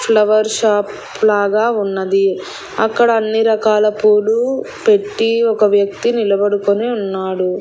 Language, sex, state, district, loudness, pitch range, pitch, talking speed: Telugu, female, Andhra Pradesh, Annamaya, -15 LUFS, 200-225 Hz, 215 Hz, 100 wpm